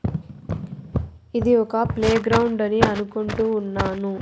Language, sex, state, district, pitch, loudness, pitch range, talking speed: Telugu, female, Andhra Pradesh, Annamaya, 220 Hz, -22 LUFS, 210-230 Hz, 85 wpm